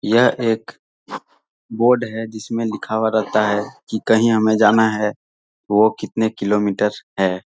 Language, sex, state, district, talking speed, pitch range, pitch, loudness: Hindi, male, Bihar, Saran, 145 wpm, 105-110 Hz, 110 Hz, -18 LUFS